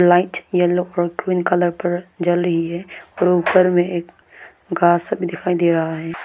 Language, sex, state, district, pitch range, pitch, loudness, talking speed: Hindi, female, Arunachal Pradesh, Lower Dibang Valley, 170-180 Hz, 175 Hz, -18 LUFS, 190 wpm